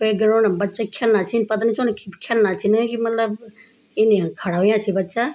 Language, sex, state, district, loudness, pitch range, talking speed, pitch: Garhwali, female, Uttarakhand, Tehri Garhwal, -20 LUFS, 200-230 Hz, 200 wpm, 220 Hz